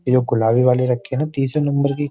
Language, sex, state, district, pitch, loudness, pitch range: Hindi, male, Uttar Pradesh, Jyotiba Phule Nagar, 130 Hz, -18 LUFS, 125-140 Hz